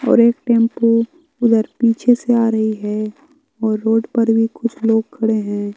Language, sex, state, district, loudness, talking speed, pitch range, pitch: Hindi, male, Bihar, West Champaran, -17 LUFS, 175 wpm, 220-235 Hz, 230 Hz